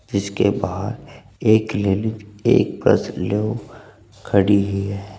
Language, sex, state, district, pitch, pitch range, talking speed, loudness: Hindi, male, Uttar Pradesh, Saharanpur, 105 Hz, 100-110 Hz, 115 wpm, -20 LUFS